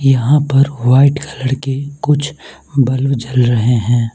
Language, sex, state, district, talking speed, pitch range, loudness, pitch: Hindi, male, Mizoram, Aizawl, 145 wpm, 125-140 Hz, -14 LUFS, 135 Hz